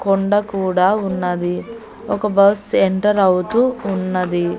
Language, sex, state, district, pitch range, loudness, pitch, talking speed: Telugu, female, Andhra Pradesh, Annamaya, 185-210 Hz, -17 LUFS, 195 Hz, 105 wpm